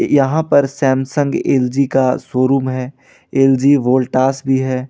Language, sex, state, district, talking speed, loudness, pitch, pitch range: Hindi, male, Jharkhand, Ranchi, 135 wpm, -15 LUFS, 135 Hz, 130-140 Hz